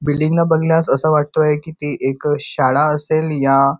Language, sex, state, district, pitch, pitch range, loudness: Marathi, male, Maharashtra, Nagpur, 150 Hz, 145-155 Hz, -16 LUFS